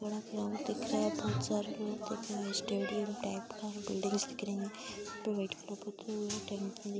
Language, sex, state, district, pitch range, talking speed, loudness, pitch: Hindi, female, Uttar Pradesh, Hamirpur, 200-215 Hz, 145 wpm, -38 LUFS, 205 Hz